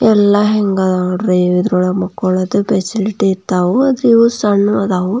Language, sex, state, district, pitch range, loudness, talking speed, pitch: Kannada, female, Karnataka, Belgaum, 185-210 Hz, -13 LUFS, 140 wpm, 195 Hz